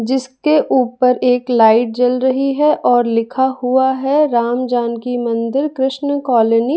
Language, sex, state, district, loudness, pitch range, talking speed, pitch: Hindi, female, Bihar, West Champaran, -15 LUFS, 240-265 Hz, 150 wpm, 250 Hz